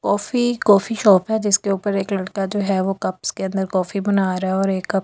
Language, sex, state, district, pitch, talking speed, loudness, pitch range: Hindi, female, Delhi, New Delhi, 195 Hz, 310 wpm, -19 LUFS, 190-205 Hz